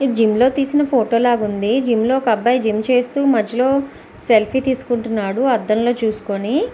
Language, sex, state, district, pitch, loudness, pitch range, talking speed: Telugu, female, Andhra Pradesh, Visakhapatnam, 240 Hz, -17 LUFS, 220-265 Hz, 180 wpm